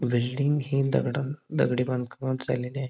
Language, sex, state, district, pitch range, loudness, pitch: Marathi, male, Maharashtra, Pune, 125-140 Hz, -27 LUFS, 130 Hz